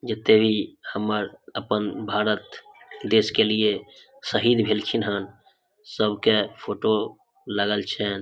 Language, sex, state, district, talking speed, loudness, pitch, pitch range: Maithili, male, Bihar, Samastipur, 125 wpm, -23 LUFS, 105 Hz, 100-110 Hz